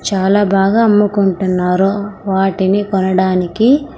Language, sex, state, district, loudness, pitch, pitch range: Telugu, female, Andhra Pradesh, Sri Satya Sai, -13 LUFS, 195 Hz, 190-205 Hz